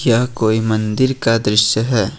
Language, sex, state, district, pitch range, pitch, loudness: Hindi, male, Jharkhand, Ranchi, 110-120 Hz, 110 Hz, -16 LUFS